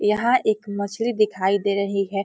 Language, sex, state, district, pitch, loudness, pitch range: Hindi, female, Bihar, Muzaffarpur, 205 Hz, -22 LUFS, 200-215 Hz